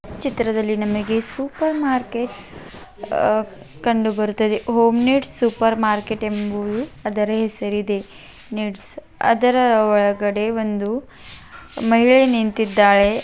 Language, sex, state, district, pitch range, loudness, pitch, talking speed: Kannada, female, Karnataka, Belgaum, 210-240 Hz, -19 LUFS, 220 Hz, 90 wpm